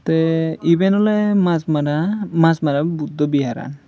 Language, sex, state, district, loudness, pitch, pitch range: Chakma, male, Tripura, Unakoti, -18 LUFS, 160 Hz, 150-180 Hz